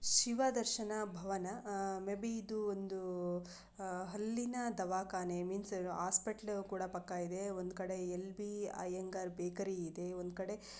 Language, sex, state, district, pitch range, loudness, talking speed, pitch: Kannada, female, Karnataka, Bijapur, 180-205 Hz, -40 LUFS, 135 wpm, 190 Hz